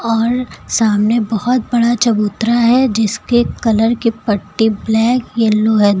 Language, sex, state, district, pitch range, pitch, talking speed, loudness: Hindi, female, Uttar Pradesh, Lucknow, 220-235 Hz, 225 Hz, 130 wpm, -14 LUFS